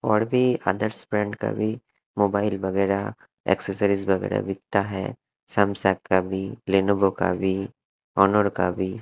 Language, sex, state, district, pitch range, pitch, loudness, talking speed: Hindi, male, Punjab, Kapurthala, 95-105 Hz, 100 Hz, -24 LUFS, 140 wpm